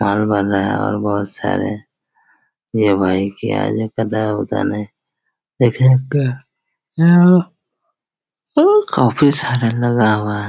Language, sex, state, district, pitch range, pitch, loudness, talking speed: Hindi, male, Chhattisgarh, Raigarh, 105-140 Hz, 115 Hz, -16 LUFS, 155 wpm